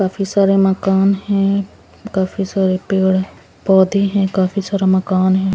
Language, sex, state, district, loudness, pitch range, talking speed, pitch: Hindi, female, Punjab, Pathankot, -16 LUFS, 190-195 Hz, 140 wpm, 195 Hz